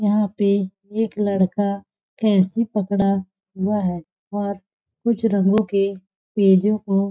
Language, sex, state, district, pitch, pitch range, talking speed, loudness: Hindi, female, Chhattisgarh, Balrampur, 200 Hz, 195-210 Hz, 120 wpm, -21 LUFS